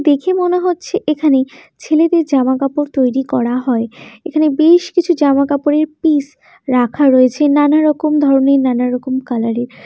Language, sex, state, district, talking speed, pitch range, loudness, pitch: Bengali, female, West Bengal, Jhargram, 145 wpm, 260-310 Hz, -14 LUFS, 290 Hz